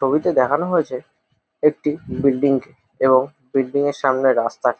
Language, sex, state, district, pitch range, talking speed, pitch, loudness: Bengali, male, West Bengal, Jalpaiguri, 130-145 Hz, 135 wpm, 135 Hz, -19 LUFS